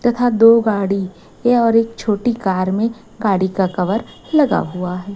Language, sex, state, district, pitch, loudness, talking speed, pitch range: Hindi, female, Chhattisgarh, Raipur, 215 Hz, -17 LUFS, 175 wpm, 190-230 Hz